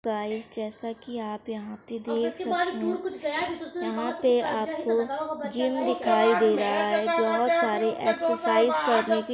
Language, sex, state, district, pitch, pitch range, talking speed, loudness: Hindi, female, Uttar Pradesh, Muzaffarnagar, 230 Hz, 220-270 Hz, 150 wpm, -26 LUFS